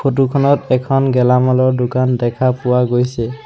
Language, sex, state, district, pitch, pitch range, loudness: Assamese, male, Assam, Sonitpur, 130 Hz, 125-135 Hz, -15 LUFS